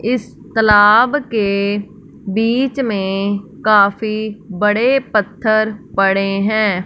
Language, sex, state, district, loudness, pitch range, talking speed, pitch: Hindi, female, Punjab, Fazilka, -15 LUFS, 200-225 Hz, 90 wpm, 215 Hz